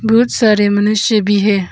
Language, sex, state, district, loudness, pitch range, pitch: Hindi, female, Arunachal Pradesh, Papum Pare, -13 LUFS, 205-220 Hz, 210 Hz